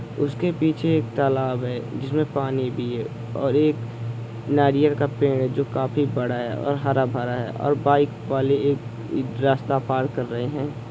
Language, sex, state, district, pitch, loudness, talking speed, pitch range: Hindi, male, Chhattisgarh, Kabirdham, 135 Hz, -23 LUFS, 180 wpm, 120-145 Hz